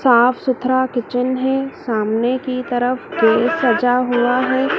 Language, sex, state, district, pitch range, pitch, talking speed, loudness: Hindi, female, Madhya Pradesh, Dhar, 240-260 Hz, 250 Hz, 140 wpm, -17 LUFS